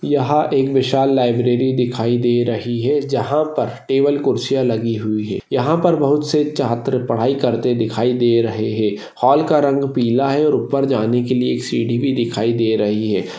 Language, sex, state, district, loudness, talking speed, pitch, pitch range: Hindi, male, Maharashtra, Solapur, -17 LUFS, 190 wpm, 125 Hz, 115-140 Hz